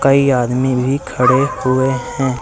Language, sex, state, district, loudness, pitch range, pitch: Hindi, male, Uttar Pradesh, Lucknow, -15 LUFS, 125-135 Hz, 130 Hz